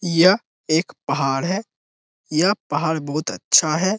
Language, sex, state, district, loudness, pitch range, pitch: Hindi, male, Bihar, Jamui, -20 LUFS, 140-185 Hz, 160 Hz